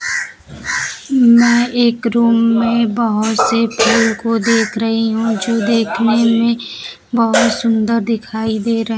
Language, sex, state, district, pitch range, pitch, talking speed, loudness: Hindi, female, Bihar, Kaimur, 225-235 Hz, 230 Hz, 125 wpm, -14 LUFS